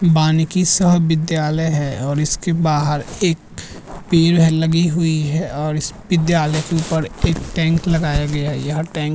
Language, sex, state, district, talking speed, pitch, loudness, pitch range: Hindi, male, Uttarakhand, Tehri Garhwal, 170 wpm, 160 Hz, -17 LUFS, 150-165 Hz